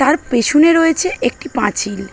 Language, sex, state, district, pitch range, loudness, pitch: Bengali, female, West Bengal, Malda, 230-330 Hz, -14 LUFS, 295 Hz